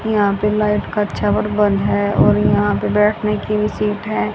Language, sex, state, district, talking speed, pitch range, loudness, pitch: Hindi, female, Haryana, Rohtak, 205 wpm, 205-210 Hz, -17 LUFS, 210 Hz